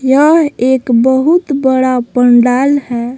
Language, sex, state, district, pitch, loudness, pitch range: Hindi, female, Jharkhand, Palamu, 260 Hz, -10 LUFS, 245-280 Hz